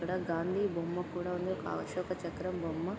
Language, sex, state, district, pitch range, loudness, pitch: Telugu, female, Andhra Pradesh, Guntur, 170-185 Hz, -36 LUFS, 180 Hz